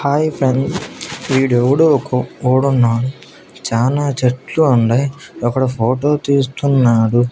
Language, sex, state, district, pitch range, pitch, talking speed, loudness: Telugu, male, Andhra Pradesh, Annamaya, 120-140 Hz, 130 Hz, 80 wpm, -15 LUFS